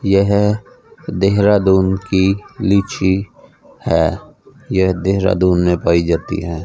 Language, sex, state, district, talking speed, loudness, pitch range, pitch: Hindi, male, Punjab, Fazilka, 100 wpm, -16 LUFS, 95-100 Hz, 95 Hz